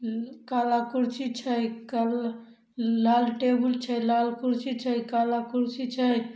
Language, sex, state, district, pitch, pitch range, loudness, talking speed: Maithili, female, Bihar, Samastipur, 240 Hz, 235-250 Hz, -27 LUFS, 115 wpm